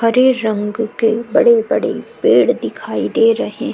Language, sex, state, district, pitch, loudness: Hindi, female, Uttar Pradesh, Jyotiba Phule Nagar, 235 Hz, -15 LUFS